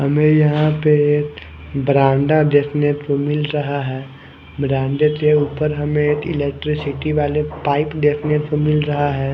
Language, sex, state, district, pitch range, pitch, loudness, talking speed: Hindi, male, Chandigarh, Chandigarh, 140-150 Hz, 150 Hz, -17 LUFS, 140 wpm